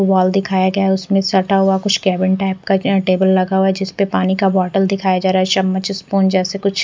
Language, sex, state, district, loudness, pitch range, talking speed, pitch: Hindi, female, Bihar, West Champaran, -16 LUFS, 190-195 Hz, 230 wpm, 190 Hz